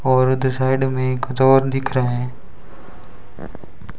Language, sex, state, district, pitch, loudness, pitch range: Hindi, male, Rajasthan, Bikaner, 130 Hz, -18 LUFS, 130-135 Hz